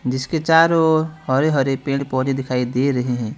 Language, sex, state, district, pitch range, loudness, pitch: Hindi, male, West Bengal, Alipurduar, 130-155 Hz, -18 LUFS, 135 Hz